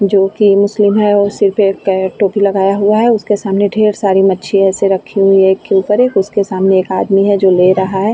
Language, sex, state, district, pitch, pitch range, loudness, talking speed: Hindi, female, Uttar Pradesh, Etah, 195 Hz, 195-205 Hz, -11 LUFS, 250 wpm